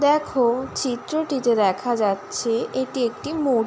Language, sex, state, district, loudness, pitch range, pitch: Bengali, female, West Bengal, Jalpaiguri, -23 LUFS, 230-275 Hz, 250 Hz